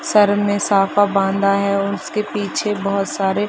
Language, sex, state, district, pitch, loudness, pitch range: Hindi, female, Bihar, Saharsa, 200 Hz, -18 LUFS, 195-205 Hz